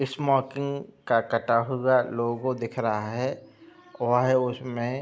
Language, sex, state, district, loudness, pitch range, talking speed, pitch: Hindi, male, Uttar Pradesh, Budaun, -26 LUFS, 120-135 Hz, 130 wpm, 130 Hz